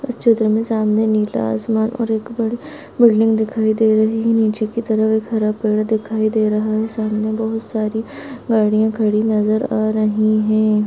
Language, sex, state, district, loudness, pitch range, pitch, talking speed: Hindi, female, Rajasthan, Nagaur, -17 LUFS, 215-225 Hz, 220 Hz, 175 wpm